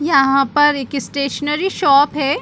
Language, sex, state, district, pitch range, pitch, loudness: Hindi, female, Chhattisgarh, Bastar, 275-295 Hz, 280 Hz, -16 LUFS